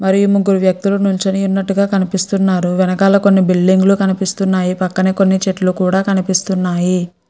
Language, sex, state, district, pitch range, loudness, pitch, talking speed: Telugu, female, Andhra Pradesh, Guntur, 185-195 Hz, -14 LUFS, 190 Hz, 140 wpm